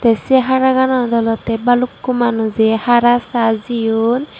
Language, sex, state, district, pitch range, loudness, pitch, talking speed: Chakma, female, Tripura, Dhalai, 225-250 Hz, -15 LUFS, 240 Hz, 110 wpm